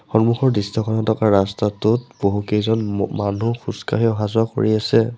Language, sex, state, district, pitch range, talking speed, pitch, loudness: Assamese, male, Assam, Sonitpur, 105-115 Hz, 115 wpm, 110 Hz, -19 LUFS